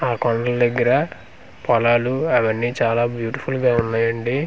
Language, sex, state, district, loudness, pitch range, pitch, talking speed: Telugu, male, Andhra Pradesh, Manyam, -19 LUFS, 115-125 Hz, 120 Hz, 120 wpm